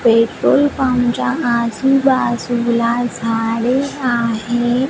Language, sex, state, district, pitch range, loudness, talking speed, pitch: Marathi, female, Maharashtra, Washim, 235-260 Hz, -16 LUFS, 60 wpm, 240 Hz